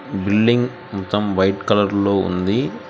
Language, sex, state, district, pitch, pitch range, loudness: Telugu, male, Telangana, Hyderabad, 100 Hz, 95-105 Hz, -18 LUFS